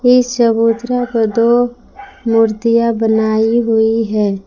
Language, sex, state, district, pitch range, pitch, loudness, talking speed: Hindi, female, Jharkhand, Palamu, 225-240 Hz, 230 Hz, -14 LUFS, 105 wpm